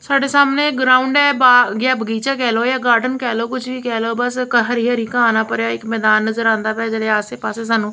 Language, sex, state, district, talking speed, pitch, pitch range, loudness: Punjabi, female, Punjab, Kapurthala, 250 wpm, 240 Hz, 225-255 Hz, -16 LUFS